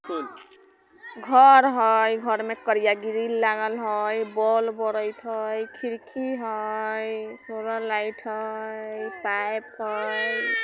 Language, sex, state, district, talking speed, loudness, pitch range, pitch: Bajjika, female, Bihar, Vaishali, 100 wpm, -24 LUFS, 215-230 Hz, 220 Hz